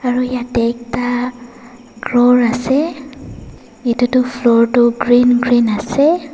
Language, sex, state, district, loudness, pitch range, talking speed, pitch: Nagamese, female, Nagaland, Dimapur, -14 LUFS, 240-250 Hz, 115 wpm, 245 Hz